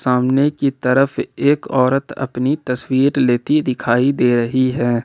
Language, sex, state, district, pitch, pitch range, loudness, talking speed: Hindi, male, Jharkhand, Ranchi, 130 Hz, 125-140 Hz, -17 LUFS, 155 wpm